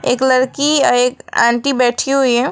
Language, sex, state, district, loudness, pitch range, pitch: Hindi, female, West Bengal, Alipurduar, -14 LUFS, 245-275 Hz, 255 Hz